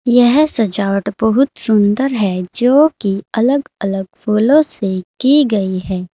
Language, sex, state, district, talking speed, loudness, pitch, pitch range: Hindi, female, Uttar Pradesh, Saharanpur, 125 wpm, -14 LUFS, 220 Hz, 195-260 Hz